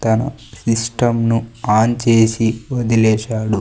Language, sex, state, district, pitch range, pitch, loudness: Telugu, male, Andhra Pradesh, Sri Satya Sai, 110-120 Hz, 115 Hz, -17 LUFS